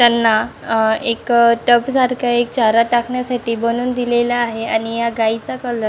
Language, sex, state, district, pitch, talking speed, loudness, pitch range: Marathi, male, Maharashtra, Chandrapur, 235 Hz, 155 wpm, -16 LUFS, 230-245 Hz